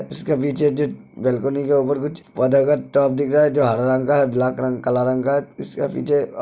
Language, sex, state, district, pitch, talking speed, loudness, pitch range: Hindi, male, Uttar Pradesh, Hamirpur, 140 Hz, 235 wpm, -19 LUFS, 130-145 Hz